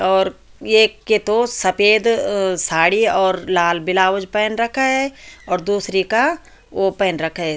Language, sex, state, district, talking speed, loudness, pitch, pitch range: Hindi, female, Uttarakhand, Tehri Garhwal, 160 wpm, -17 LUFS, 195 Hz, 185-220 Hz